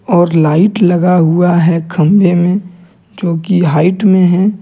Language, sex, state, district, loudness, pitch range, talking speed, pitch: Hindi, male, Jharkhand, Deoghar, -11 LUFS, 170-190 Hz, 155 wpm, 180 Hz